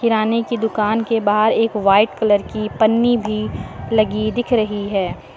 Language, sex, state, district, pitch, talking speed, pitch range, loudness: Hindi, female, Uttar Pradesh, Lucknow, 215 Hz, 170 wpm, 210-225 Hz, -18 LUFS